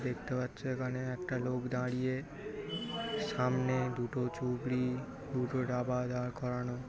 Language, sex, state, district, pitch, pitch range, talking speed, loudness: Bengali, male, West Bengal, Paschim Medinipur, 125 Hz, 125-130 Hz, 115 wpm, -36 LUFS